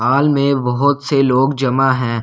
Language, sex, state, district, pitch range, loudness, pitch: Hindi, male, Delhi, New Delhi, 130-140 Hz, -15 LUFS, 135 Hz